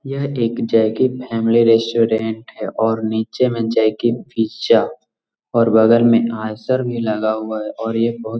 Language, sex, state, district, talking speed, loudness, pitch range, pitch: Magahi, male, Bihar, Jahanabad, 145 wpm, -17 LUFS, 110-115 Hz, 115 Hz